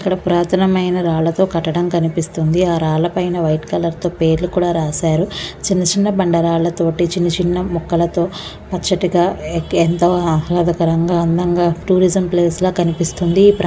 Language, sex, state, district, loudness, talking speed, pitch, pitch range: Telugu, female, Andhra Pradesh, Krishna, -16 LUFS, 125 wpm, 175 Hz, 165-180 Hz